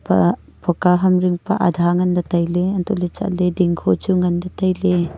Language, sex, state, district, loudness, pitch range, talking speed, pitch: Wancho, female, Arunachal Pradesh, Longding, -18 LUFS, 175-185 Hz, 150 wpm, 180 Hz